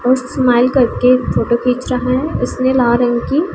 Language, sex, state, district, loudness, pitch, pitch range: Hindi, female, Punjab, Pathankot, -14 LUFS, 255 Hz, 245-260 Hz